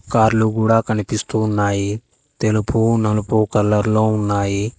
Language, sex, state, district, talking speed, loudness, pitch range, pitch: Telugu, male, Telangana, Hyderabad, 115 wpm, -18 LUFS, 105-110 Hz, 110 Hz